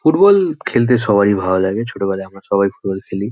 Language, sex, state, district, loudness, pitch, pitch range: Bengali, male, West Bengal, North 24 Parganas, -16 LUFS, 100 Hz, 95-125 Hz